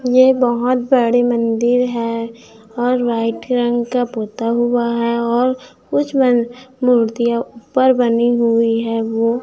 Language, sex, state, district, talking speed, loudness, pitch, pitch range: Hindi, female, Chhattisgarh, Raipur, 135 wpm, -16 LUFS, 240 Hz, 230-250 Hz